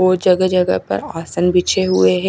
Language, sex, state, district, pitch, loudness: Hindi, female, Chhattisgarh, Raipur, 180 Hz, -16 LUFS